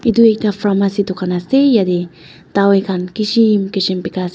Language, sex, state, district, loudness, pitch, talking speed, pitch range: Nagamese, female, Nagaland, Dimapur, -15 LUFS, 200 Hz, 125 wpm, 185-215 Hz